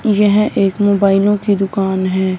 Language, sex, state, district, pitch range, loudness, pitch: Hindi, female, Punjab, Fazilka, 190-205 Hz, -14 LUFS, 200 Hz